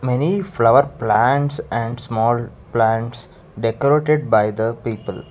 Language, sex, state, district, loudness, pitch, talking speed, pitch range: English, male, Karnataka, Bangalore, -18 LUFS, 120 Hz, 115 wpm, 115-145 Hz